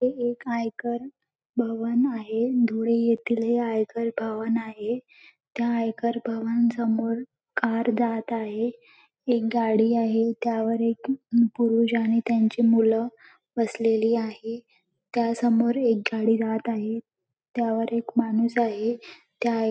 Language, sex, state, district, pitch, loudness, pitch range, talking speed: Marathi, female, Maharashtra, Dhule, 230 Hz, -25 LUFS, 225-235 Hz, 120 wpm